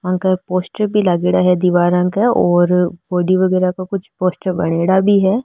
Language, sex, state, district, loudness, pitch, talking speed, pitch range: Marwari, female, Rajasthan, Nagaur, -15 LUFS, 185 Hz, 175 wpm, 180-190 Hz